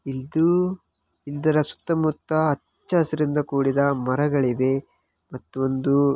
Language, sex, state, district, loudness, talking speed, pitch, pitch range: Kannada, male, Karnataka, Bellary, -23 LUFS, 90 wpm, 145 Hz, 135-155 Hz